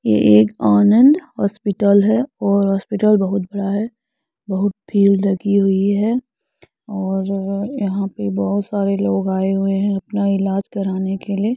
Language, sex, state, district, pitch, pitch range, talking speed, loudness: Hindi, female, Uttar Pradesh, Muzaffarnagar, 200 Hz, 195-210 Hz, 155 wpm, -17 LUFS